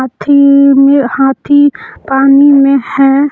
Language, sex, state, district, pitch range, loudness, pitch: Hindi, female, Jharkhand, Palamu, 270-280 Hz, -8 LUFS, 275 Hz